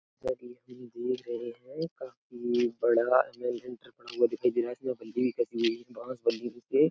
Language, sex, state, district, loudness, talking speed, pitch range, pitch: Hindi, male, Uttar Pradesh, Etah, -31 LUFS, 165 wpm, 120-130 Hz, 120 Hz